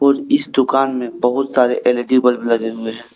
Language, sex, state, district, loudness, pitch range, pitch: Hindi, male, Jharkhand, Deoghar, -16 LUFS, 120-135 Hz, 125 Hz